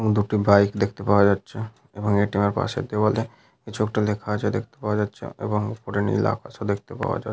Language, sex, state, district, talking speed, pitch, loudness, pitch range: Bengali, male, West Bengal, Paschim Medinipur, 220 wpm, 105 Hz, -23 LUFS, 100-115 Hz